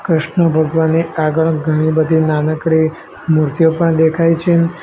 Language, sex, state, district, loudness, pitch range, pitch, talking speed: Gujarati, male, Gujarat, Gandhinagar, -14 LUFS, 155-165 Hz, 160 Hz, 125 wpm